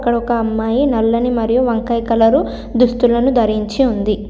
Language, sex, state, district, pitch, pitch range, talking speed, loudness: Telugu, female, Telangana, Komaram Bheem, 235 Hz, 225-245 Hz, 140 wpm, -15 LUFS